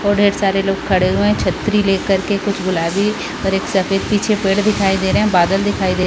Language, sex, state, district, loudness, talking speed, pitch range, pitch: Hindi, female, Chhattisgarh, Balrampur, -16 LUFS, 255 wpm, 190-205 Hz, 195 Hz